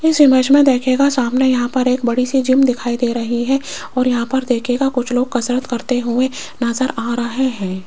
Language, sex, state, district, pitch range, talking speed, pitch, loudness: Hindi, female, Rajasthan, Jaipur, 240-265 Hz, 215 wpm, 250 Hz, -16 LUFS